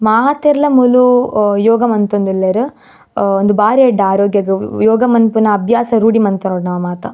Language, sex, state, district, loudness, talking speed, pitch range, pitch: Tulu, female, Karnataka, Dakshina Kannada, -12 LUFS, 145 wpm, 200-245 Hz, 220 Hz